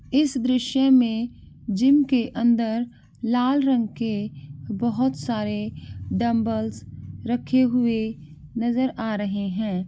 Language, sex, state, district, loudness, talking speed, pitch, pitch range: Angika, male, Bihar, Madhepura, -23 LUFS, 110 wpm, 230 Hz, 210-250 Hz